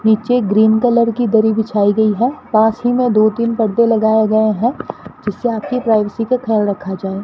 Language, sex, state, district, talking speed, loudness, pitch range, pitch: Hindi, female, Rajasthan, Bikaner, 200 wpm, -15 LUFS, 215-235 Hz, 220 Hz